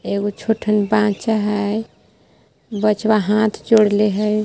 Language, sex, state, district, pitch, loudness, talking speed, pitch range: Magahi, female, Jharkhand, Palamu, 210 Hz, -18 LUFS, 105 wpm, 210-215 Hz